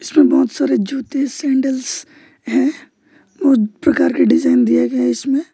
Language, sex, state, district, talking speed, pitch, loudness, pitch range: Hindi, male, West Bengal, Alipurduar, 140 wpm, 275 Hz, -16 LUFS, 220-300 Hz